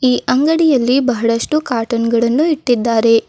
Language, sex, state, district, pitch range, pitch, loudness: Kannada, female, Karnataka, Bidar, 230-280 Hz, 245 Hz, -14 LUFS